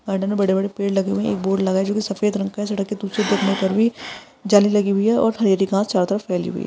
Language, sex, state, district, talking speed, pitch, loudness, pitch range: Hindi, female, Maharashtra, Solapur, 305 wpm, 200 Hz, -20 LUFS, 195-210 Hz